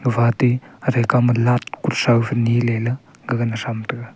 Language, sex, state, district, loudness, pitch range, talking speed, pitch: Wancho, male, Arunachal Pradesh, Longding, -19 LUFS, 120-125 Hz, 160 wpm, 120 Hz